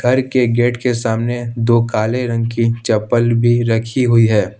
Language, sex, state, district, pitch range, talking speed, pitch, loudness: Hindi, male, Jharkhand, Ranchi, 115-120 Hz, 180 wpm, 115 Hz, -15 LUFS